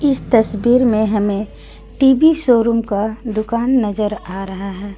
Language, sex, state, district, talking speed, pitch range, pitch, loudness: Hindi, female, Jharkhand, Garhwa, 135 wpm, 205-245 Hz, 220 Hz, -16 LUFS